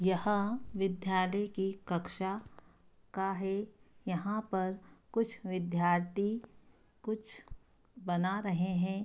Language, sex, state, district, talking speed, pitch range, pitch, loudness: Hindi, female, Bihar, East Champaran, 95 wpm, 185-210 Hz, 195 Hz, -35 LUFS